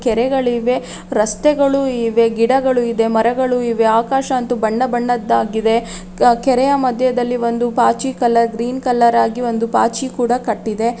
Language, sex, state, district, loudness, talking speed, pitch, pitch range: Kannada, female, Karnataka, Raichur, -16 LUFS, 130 wpm, 240 Hz, 230-255 Hz